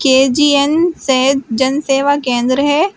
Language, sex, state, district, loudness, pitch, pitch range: Hindi, female, Uttar Pradesh, Shamli, -13 LUFS, 275 Hz, 265-290 Hz